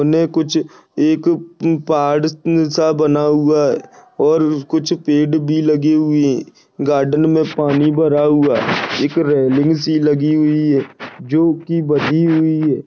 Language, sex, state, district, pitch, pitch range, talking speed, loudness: Hindi, male, Maharashtra, Dhule, 155 Hz, 150-160 Hz, 135 wpm, -15 LUFS